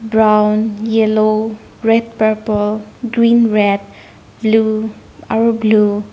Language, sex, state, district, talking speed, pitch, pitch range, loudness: Nagamese, female, Nagaland, Dimapur, 90 wpm, 215 Hz, 210-225 Hz, -14 LUFS